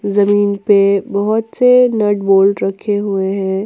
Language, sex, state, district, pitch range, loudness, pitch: Hindi, female, Jharkhand, Ranchi, 195-205 Hz, -13 LUFS, 200 Hz